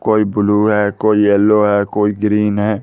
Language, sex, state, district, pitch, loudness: Hindi, male, Bihar, West Champaran, 105 Hz, -14 LUFS